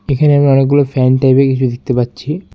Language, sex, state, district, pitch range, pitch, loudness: Bengali, male, West Bengal, Alipurduar, 130-145 Hz, 135 Hz, -12 LUFS